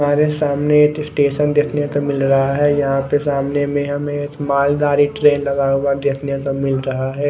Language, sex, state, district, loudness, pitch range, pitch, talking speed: Hindi, male, Odisha, Khordha, -17 LUFS, 140-145 Hz, 145 Hz, 190 wpm